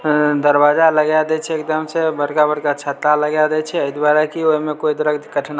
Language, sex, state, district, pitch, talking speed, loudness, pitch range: Maithili, male, Bihar, Samastipur, 150 Hz, 225 wpm, -16 LUFS, 150-155 Hz